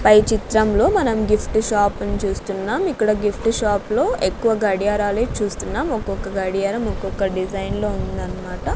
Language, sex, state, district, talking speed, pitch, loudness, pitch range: Telugu, female, Andhra Pradesh, Sri Satya Sai, 135 wpm, 210 Hz, -20 LUFS, 200-220 Hz